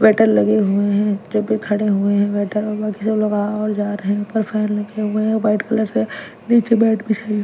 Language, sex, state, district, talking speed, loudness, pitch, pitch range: Hindi, female, Punjab, Kapurthala, 240 wpm, -18 LUFS, 210 Hz, 205-220 Hz